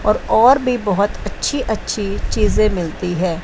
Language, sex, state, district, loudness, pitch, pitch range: Hindi, female, Chandigarh, Chandigarh, -17 LUFS, 210 Hz, 185-225 Hz